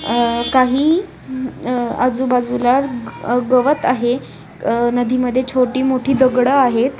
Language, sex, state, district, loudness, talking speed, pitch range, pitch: Marathi, female, Maharashtra, Nagpur, -16 LUFS, 110 wpm, 245-260 Hz, 250 Hz